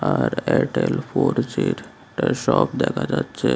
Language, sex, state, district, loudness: Bengali, male, Tripura, West Tripura, -22 LUFS